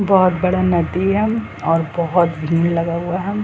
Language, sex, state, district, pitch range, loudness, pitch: Hindi, female, Uttar Pradesh, Jyotiba Phule Nagar, 170-190 Hz, -18 LUFS, 180 Hz